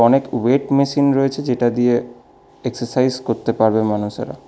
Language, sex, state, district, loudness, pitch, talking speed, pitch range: Bengali, male, West Bengal, Alipurduar, -18 LUFS, 125 Hz, 135 wpm, 115-135 Hz